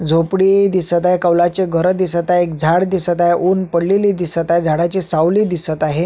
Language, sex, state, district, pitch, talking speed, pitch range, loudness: Marathi, male, Maharashtra, Sindhudurg, 175 Hz, 190 wpm, 170-185 Hz, -15 LUFS